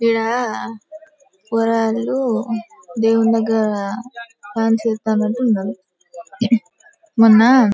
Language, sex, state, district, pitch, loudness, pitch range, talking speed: Telugu, female, Telangana, Karimnagar, 225 Hz, -18 LUFS, 220-235 Hz, 70 wpm